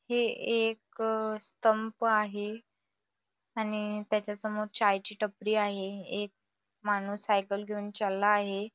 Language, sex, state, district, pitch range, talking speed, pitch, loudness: Marathi, female, Maharashtra, Nagpur, 205-220 Hz, 115 wpm, 210 Hz, -31 LUFS